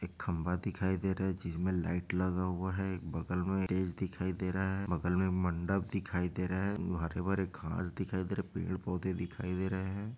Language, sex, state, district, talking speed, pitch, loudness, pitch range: Hindi, male, Chhattisgarh, Raigarh, 230 wpm, 95 Hz, -35 LUFS, 90-95 Hz